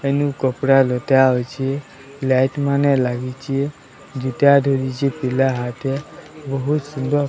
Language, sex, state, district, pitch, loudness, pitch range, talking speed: Odia, male, Odisha, Sambalpur, 135 Hz, -19 LUFS, 130-140 Hz, 90 wpm